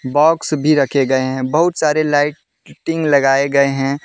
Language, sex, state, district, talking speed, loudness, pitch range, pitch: Hindi, male, Jharkhand, Deoghar, 160 wpm, -15 LUFS, 135-155 Hz, 145 Hz